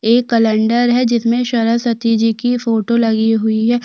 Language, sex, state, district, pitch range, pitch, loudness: Hindi, female, Chhattisgarh, Sukma, 225-240 Hz, 230 Hz, -14 LUFS